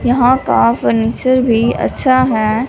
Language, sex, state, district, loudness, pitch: Hindi, female, Punjab, Fazilka, -13 LUFS, 235 Hz